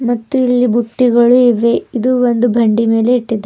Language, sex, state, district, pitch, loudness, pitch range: Kannada, female, Karnataka, Bidar, 240 Hz, -12 LUFS, 230-250 Hz